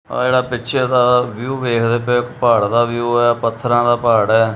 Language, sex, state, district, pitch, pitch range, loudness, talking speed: Punjabi, male, Punjab, Kapurthala, 120 Hz, 115-125 Hz, -16 LUFS, 210 wpm